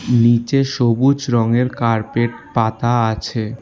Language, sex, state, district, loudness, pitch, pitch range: Bengali, male, West Bengal, Alipurduar, -17 LUFS, 120 Hz, 115-125 Hz